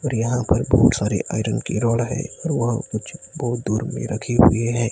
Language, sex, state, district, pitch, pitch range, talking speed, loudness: Hindi, male, Maharashtra, Gondia, 120 Hz, 115-125 Hz, 205 wpm, -21 LUFS